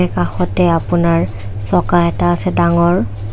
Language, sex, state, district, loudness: Assamese, female, Assam, Kamrup Metropolitan, -15 LUFS